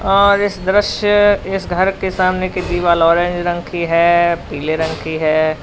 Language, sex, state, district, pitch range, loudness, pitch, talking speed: Hindi, male, Uttar Pradesh, Lalitpur, 170-195 Hz, -15 LUFS, 175 Hz, 180 wpm